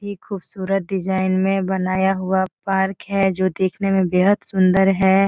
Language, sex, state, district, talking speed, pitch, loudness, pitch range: Hindi, female, Bihar, Jahanabad, 160 wpm, 190 Hz, -19 LUFS, 190-195 Hz